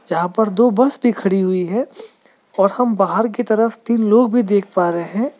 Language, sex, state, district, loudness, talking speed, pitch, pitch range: Hindi, male, Meghalaya, West Garo Hills, -17 LUFS, 220 wpm, 225 Hz, 195-245 Hz